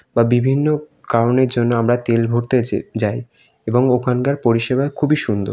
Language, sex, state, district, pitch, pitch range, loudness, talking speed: Bengali, male, West Bengal, North 24 Parganas, 120 Hz, 115-130 Hz, -17 LUFS, 130 wpm